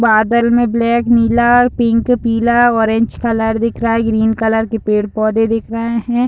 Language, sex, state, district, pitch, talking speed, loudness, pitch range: Hindi, female, Uttar Pradesh, Deoria, 230 Hz, 170 wpm, -14 LUFS, 225-235 Hz